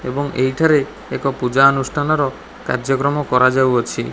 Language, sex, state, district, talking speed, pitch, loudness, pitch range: Odia, male, Odisha, Khordha, 115 wpm, 135 Hz, -17 LUFS, 130-145 Hz